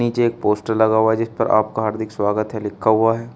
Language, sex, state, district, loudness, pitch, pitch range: Hindi, male, Uttar Pradesh, Shamli, -19 LUFS, 110 Hz, 110-115 Hz